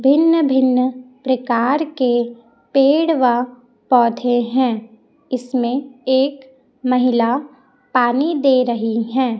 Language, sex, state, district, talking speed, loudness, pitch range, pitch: Hindi, female, Chhattisgarh, Raipur, 95 wpm, -17 LUFS, 240-270 Hz, 255 Hz